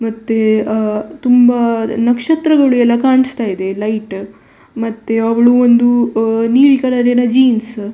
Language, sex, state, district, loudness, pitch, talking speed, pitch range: Kannada, female, Karnataka, Dakshina Kannada, -13 LUFS, 235 Hz, 115 wpm, 225-245 Hz